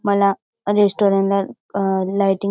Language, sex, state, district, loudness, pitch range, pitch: Marathi, female, Maharashtra, Dhule, -19 LUFS, 195-200 Hz, 200 Hz